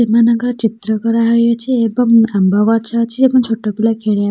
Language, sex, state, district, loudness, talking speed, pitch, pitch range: Odia, female, Odisha, Khordha, -14 LUFS, 165 wpm, 230 Hz, 220-235 Hz